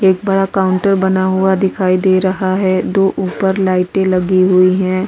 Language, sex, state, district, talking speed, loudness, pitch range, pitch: Hindi, female, Goa, North and South Goa, 175 wpm, -13 LUFS, 185-190 Hz, 190 Hz